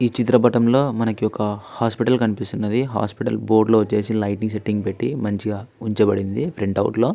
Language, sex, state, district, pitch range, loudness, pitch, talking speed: Telugu, male, Andhra Pradesh, Visakhapatnam, 105-120 Hz, -20 LUFS, 110 Hz, 170 wpm